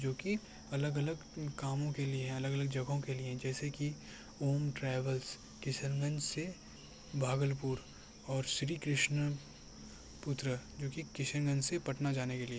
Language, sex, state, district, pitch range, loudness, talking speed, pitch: Hindi, male, Bihar, Kishanganj, 130-145 Hz, -38 LUFS, 155 wpm, 135 Hz